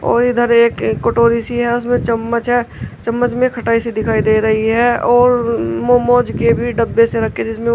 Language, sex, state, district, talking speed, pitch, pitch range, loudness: Hindi, female, Uttar Pradesh, Shamli, 195 wpm, 235 Hz, 225-240 Hz, -14 LUFS